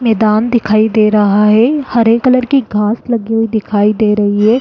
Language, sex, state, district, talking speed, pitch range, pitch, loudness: Hindi, female, Uttarakhand, Uttarkashi, 170 wpm, 210-235 Hz, 220 Hz, -11 LUFS